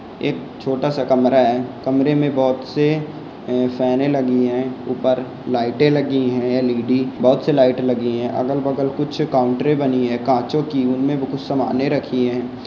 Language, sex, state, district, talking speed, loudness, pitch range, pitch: Hindi, male, Jharkhand, Sahebganj, 165 wpm, -19 LUFS, 125-140 Hz, 130 Hz